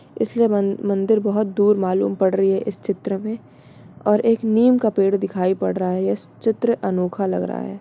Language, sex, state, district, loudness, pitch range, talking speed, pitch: Hindi, female, Bihar, Samastipur, -20 LUFS, 185-215 Hz, 215 wpm, 195 Hz